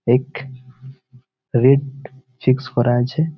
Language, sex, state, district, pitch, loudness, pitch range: Bengali, male, West Bengal, Malda, 130 Hz, -18 LUFS, 125-135 Hz